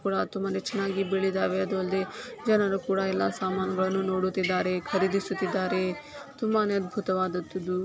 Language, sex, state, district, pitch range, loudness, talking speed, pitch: Kannada, female, Karnataka, Shimoga, 185-195 Hz, -28 LUFS, 105 wpm, 190 Hz